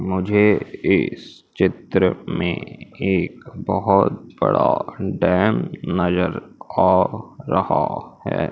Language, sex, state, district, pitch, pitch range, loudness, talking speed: Hindi, male, Madhya Pradesh, Umaria, 100 Hz, 90-105 Hz, -20 LUFS, 85 wpm